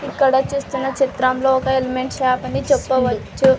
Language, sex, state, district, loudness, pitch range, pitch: Telugu, female, Andhra Pradesh, Sri Satya Sai, -18 LUFS, 255-270 Hz, 265 Hz